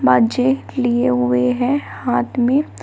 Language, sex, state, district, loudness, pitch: Hindi, female, Uttar Pradesh, Shamli, -17 LUFS, 245 Hz